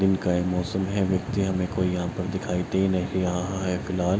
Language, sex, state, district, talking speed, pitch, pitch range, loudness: Hindi, male, Bihar, Araria, 230 wpm, 90 Hz, 90-95 Hz, -26 LUFS